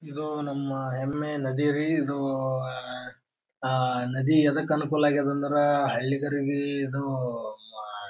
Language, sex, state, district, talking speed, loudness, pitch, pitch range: Kannada, male, Karnataka, Bijapur, 120 wpm, -27 LUFS, 140 Hz, 130-145 Hz